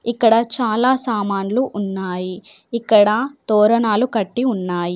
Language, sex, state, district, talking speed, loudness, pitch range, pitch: Telugu, female, Telangana, Komaram Bheem, 95 wpm, -18 LUFS, 200-240 Hz, 215 Hz